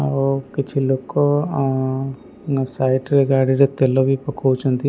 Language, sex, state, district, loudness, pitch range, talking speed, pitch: Odia, male, Odisha, Malkangiri, -19 LUFS, 130-140 Hz, 120 wpm, 135 Hz